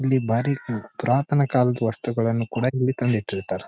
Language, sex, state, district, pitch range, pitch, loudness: Kannada, male, Karnataka, Dharwad, 115-130 Hz, 125 Hz, -23 LUFS